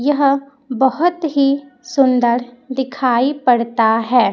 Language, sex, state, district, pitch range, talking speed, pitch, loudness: Hindi, female, Chhattisgarh, Raipur, 245-275 Hz, 95 wpm, 265 Hz, -16 LUFS